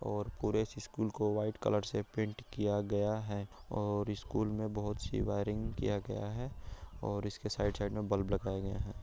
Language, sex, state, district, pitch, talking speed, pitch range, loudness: Hindi, male, Bihar, Araria, 105 Hz, 200 wpm, 100-110 Hz, -37 LUFS